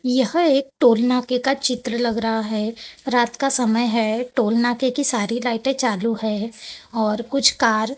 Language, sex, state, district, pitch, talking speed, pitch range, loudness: Hindi, male, Maharashtra, Gondia, 240 Hz, 190 wpm, 225-255 Hz, -20 LUFS